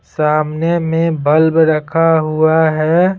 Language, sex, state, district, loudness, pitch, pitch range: Hindi, male, Bihar, Patna, -13 LUFS, 160 Hz, 155-165 Hz